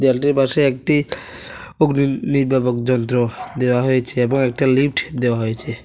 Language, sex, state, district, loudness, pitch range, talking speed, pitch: Bengali, male, Tripura, West Tripura, -18 LUFS, 125-140 Hz, 115 wpm, 130 Hz